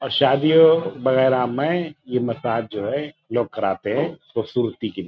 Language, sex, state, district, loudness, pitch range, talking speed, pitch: Hindi, male, Uttar Pradesh, Budaun, -21 LUFS, 115-150 Hz, 165 wpm, 130 Hz